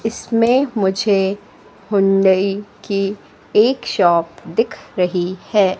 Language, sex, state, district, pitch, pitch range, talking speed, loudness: Hindi, female, Madhya Pradesh, Katni, 195 Hz, 190-215 Hz, 95 wpm, -17 LUFS